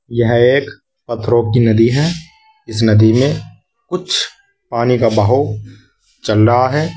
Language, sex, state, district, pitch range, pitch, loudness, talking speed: Hindi, male, Uttar Pradesh, Saharanpur, 115-160 Hz, 120 Hz, -14 LUFS, 140 wpm